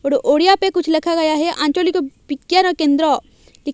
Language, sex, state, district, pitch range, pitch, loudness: Hindi, female, Odisha, Malkangiri, 290-355 Hz, 315 Hz, -16 LUFS